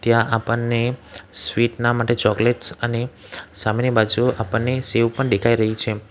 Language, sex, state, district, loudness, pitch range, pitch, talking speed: Gujarati, male, Gujarat, Valsad, -20 LUFS, 110-120 Hz, 115 Hz, 145 wpm